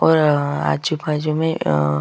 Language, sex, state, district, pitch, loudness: Hindi, female, Chhattisgarh, Sukma, 150 Hz, -19 LUFS